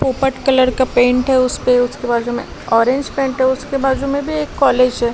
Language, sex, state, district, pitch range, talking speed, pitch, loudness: Hindi, female, Delhi, New Delhi, 245-270 Hz, 220 wpm, 260 Hz, -16 LUFS